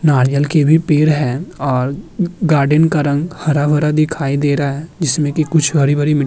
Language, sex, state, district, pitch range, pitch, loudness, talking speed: Hindi, male, Uttar Pradesh, Muzaffarnagar, 145-155 Hz, 150 Hz, -15 LUFS, 220 wpm